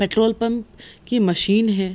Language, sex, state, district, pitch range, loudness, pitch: Hindi, female, Bihar, Madhepura, 195-225 Hz, -20 LUFS, 215 Hz